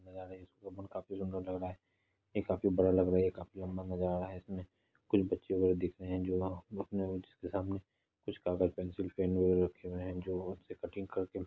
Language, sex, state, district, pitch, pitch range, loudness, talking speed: Hindi, male, Bihar, Purnia, 95 Hz, 90-95 Hz, -36 LUFS, 225 wpm